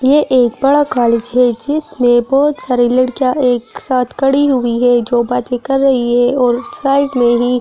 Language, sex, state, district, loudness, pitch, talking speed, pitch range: Hindi, female, Delhi, New Delhi, -13 LUFS, 250 Hz, 180 wpm, 245-270 Hz